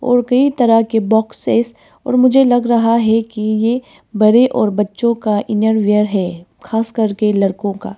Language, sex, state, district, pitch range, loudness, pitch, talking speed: Hindi, female, Arunachal Pradesh, Papum Pare, 210-235 Hz, -14 LUFS, 225 Hz, 165 wpm